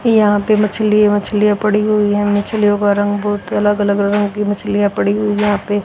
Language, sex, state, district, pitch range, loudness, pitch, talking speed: Hindi, female, Haryana, Rohtak, 205-210 Hz, -15 LUFS, 205 Hz, 205 wpm